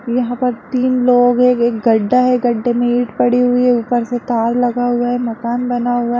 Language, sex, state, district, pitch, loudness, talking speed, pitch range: Hindi, female, Bihar, Gaya, 245 Hz, -15 LUFS, 230 wpm, 240-245 Hz